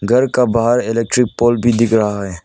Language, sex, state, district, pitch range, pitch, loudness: Hindi, male, Arunachal Pradesh, Lower Dibang Valley, 110-120 Hz, 115 Hz, -15 LUFS